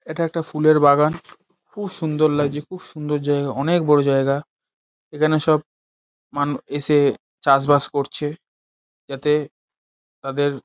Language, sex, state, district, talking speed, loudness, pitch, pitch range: Bengali, male, West Bengal, Paschim Medinipur, 125 wpm, -20 LUFS, 145 Hz, 140-155 Hz